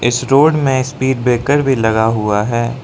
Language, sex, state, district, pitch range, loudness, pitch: Hindi, male, Arunachal Pradesh, Lower Dibang Valley, 115-135 Hz, -14 LUFS, 125 Hz